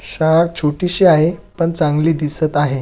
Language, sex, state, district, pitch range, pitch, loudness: Marathi, male, Maharashtra, Dhule, 150-170 Hz, 160 Hz, -15 LUFS